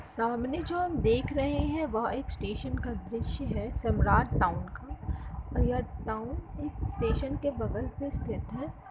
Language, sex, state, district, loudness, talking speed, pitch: Hindi, female, Uttar Pradesh, Etah, -32 LUFS, 170 wpm, 240 Hz